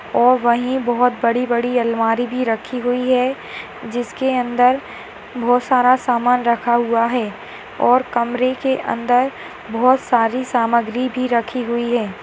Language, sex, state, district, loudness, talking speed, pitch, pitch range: Hindi, female, Bihar, Madhepura, -18 LUFS, 130 wpm, 245 Hz, 235-255 Hz